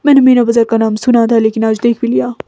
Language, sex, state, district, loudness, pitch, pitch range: Hindi, female, Himachal Pradesh, Shimla, -11 LUFS, 230 Hz, 220-245 Hz